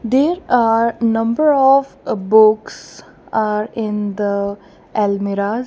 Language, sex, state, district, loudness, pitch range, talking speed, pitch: English, female, Punjab, Kapurthala, -16 LUFS, 205-245 Hz, 105 wpm, 220 Hz